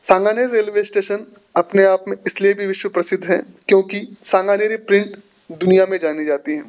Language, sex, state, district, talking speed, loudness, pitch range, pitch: Hindi, male, Rajasthan, Jaipur, 150 wpm, -17 LUFS, 185-205 Hz, 200 Hz